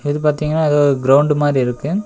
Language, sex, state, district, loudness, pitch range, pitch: Tamil, male, Tamil Nadu, Nilgiris, -15 LUFS, 140-150 Hz, 145 Hz